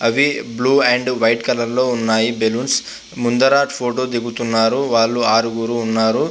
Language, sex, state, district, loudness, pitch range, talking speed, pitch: Telugu, male, Andhra Pradesh, Visakhapatnam, -17 LUFS, 115-125 Hz, 145 wpm, 120 Hz